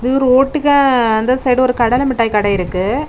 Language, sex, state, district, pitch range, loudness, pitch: Tamil, female, Tamil Nadu, Kanyakumari, 220-270 Hz, -13 LUFS, 250 Hz